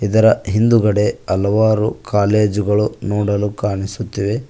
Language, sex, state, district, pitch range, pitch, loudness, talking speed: Kannada, male, Karnataka, Koppal, 100-110 Hz, 105 Hz, -17 LUFS, 95 wpm